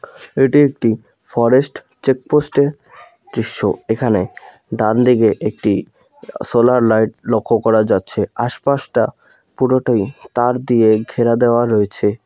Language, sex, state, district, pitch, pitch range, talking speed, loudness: Bengali, male, West Bengal, Alipurduar, 120 Hz, 110-130 Hz, 105 wpm, -16 LUFS